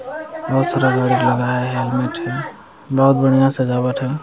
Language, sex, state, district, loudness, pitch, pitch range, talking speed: Hindi, male, Bihar, Jamui, -17 LUFS, 130 Hz, 125-135 Hz, 130 wpm